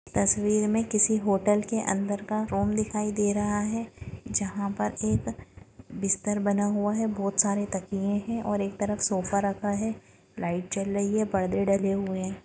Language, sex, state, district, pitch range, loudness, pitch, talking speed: Hindi, female, Chhattisgarh, Rajnandgaon, 195-210 Hz, -27 LUFS, 205 Hz, 180 wpm